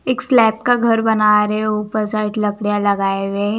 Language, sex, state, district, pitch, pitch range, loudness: Hindi, female, Bihar, Katihar, 215 Hz, 205-225 Hz, -16 LUFS